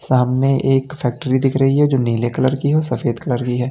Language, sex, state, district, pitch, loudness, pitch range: Hindi, male, Uttar Pradesh, Lalitpur, 130 Hz, -17 LUFS, 125-135 Hz